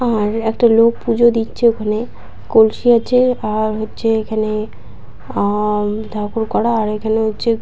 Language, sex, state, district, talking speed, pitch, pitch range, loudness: Bengali, female, West Bengal, Purulia, 135 wpm, 220 Hz, 215-230 Hz, -16 LUFS